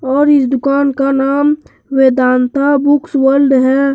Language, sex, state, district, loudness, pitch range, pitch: Hindi, male, Jharkhand, Deoghar, -12 LUFS, 265-280 Hz, 275 Hz